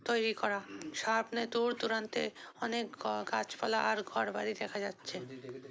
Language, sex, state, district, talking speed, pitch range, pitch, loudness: Bengali, female, West Bengal, North 24 Parganas, 145 wpm, 195-235 Hz, 220 Hz, -35 LUFS